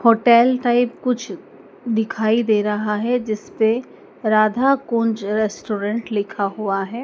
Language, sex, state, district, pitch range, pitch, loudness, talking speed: Hindi, female, Madhya Pradesh, Dhar, 210-240 Hz, 220 Hz, -19 LUFS, 110 wpm